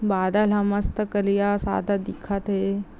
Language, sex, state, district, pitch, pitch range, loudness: Chhattisgarhi, female, Chhattisgarh, Raigarh, 200 Hz, 200-205 Hz, -24 LUFS